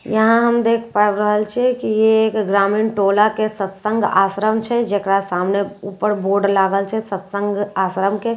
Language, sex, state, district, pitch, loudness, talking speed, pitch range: Maithili, female, Bihar, Katihar, 210 Hz, -17 LUFS, 185 wpm, 195-220 Hz